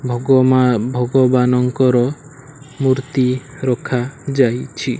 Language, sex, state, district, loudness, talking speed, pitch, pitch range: Odia, male, Odisha, Malkangiri, -16 LUFS, 60 wpm, 130 Hz, 125-135 Hz